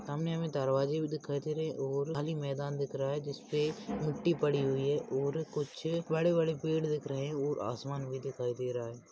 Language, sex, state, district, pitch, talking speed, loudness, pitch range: Hindi, male, Maharashtra, Nagpur, 145 Hz, 215 wpm, -34 LUFS, 135-160 Hz